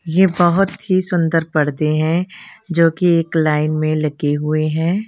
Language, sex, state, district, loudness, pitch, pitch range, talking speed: Hindi, female, Punjab, Kapurthala, -17 LUFS, 165 Hz, 155-180 Hz, 155 wpm